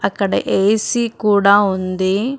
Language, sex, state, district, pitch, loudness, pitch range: Telugu, female, Telangana, Karimnagar, 200 Hz, -16 LUFS, 195-215 Hz